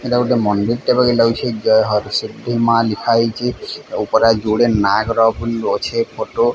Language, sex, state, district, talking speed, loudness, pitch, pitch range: Odia, male, Odisha, Sambalpur, 120 wpm, -16 LUFS, 115 Hz, 110-120 Hz